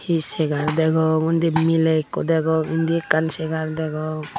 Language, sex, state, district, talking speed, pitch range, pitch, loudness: Chakma, female, Tripura, Unakoti, 150 wpm, 155-165 Hz, 160 Hz, -21 LUFS